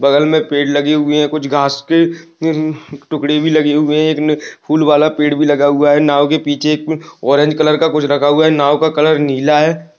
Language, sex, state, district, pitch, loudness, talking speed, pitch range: Hindi, male, Maharashtra, Sindhudurg, 150 Hz, -13 LUFS, 215 wpm, 145-155 Hz